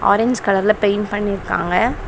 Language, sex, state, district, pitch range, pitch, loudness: Tamil, female, Tamil Nadu, Chennai, 200-210 Hz, 205 Hz, -18 LUFS